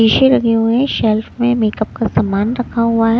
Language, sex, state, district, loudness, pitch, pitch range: Hindi, female, Punjab, Kapurthala, -15 LUFS, 225 Hz, 220-240 Hz